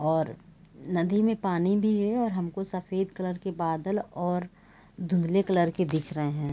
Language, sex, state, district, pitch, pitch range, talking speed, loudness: Hindi, female, Chhattisgarh, Raigarh, 180 Hz, 170-195 Hz, 175 wpm, -28 LUFS